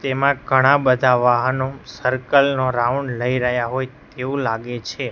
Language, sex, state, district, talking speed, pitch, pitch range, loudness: Gujarati, male, Gujarat, Gandhinagar, 150 wpm, 130 Hz, 125-135 Hz, -19 LUFS